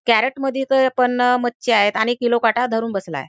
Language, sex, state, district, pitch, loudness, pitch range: Marathi, female, Maharashtra, Chandrapur, 240 Hz, -18 LUFS, 225-250 Hz